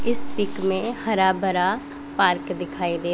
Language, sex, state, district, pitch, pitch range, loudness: Hindi, female, Punjab, Pathankot, 190 Hz, 185-230 Hz, -22 LUFS